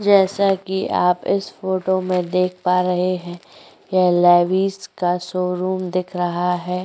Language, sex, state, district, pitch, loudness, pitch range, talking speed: Hindi, female, Uttar Pradesh, Jyotiba Phule Nagar, 180 Hz, -19 LUFS, 180-190 Hz, 150 wpm